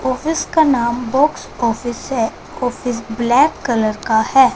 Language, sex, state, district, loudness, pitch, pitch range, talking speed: Hindi, female, Punjab, Fazilka, -17 LUFS, 240 Hz, 230-265 Hz, 145 wpm